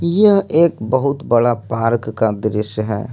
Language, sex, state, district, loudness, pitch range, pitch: Hindi, male, Jharkhand, Ranchi, -16 LUFS, 110-155 Hz, 115 Hz